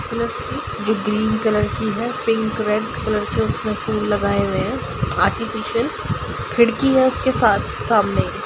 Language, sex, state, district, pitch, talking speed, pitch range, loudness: Hindi, female, Bihar, Gopalganj, 215 Hz, 135 wpm, 210-235 Hz, -20 LUFS